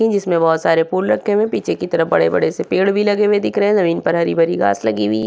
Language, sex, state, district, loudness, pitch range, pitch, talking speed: Hindi, female, Uttarakhand, Tehri Garhwal, -16 LUFS, 165-205 Hz, 175 Hz, 295 wpm